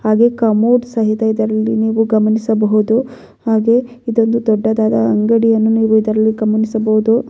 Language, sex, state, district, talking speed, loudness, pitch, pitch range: Kannada, female, Karnataka, Bellary, 105 wpm, -14 LUFS, 220 Hz, 220-230 Hz